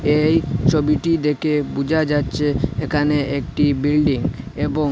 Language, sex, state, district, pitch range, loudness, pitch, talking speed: Bengali, male, Assam, Hailakandi, 145-150 Hz, -19 LUFS, 150 Hz, 110 wpm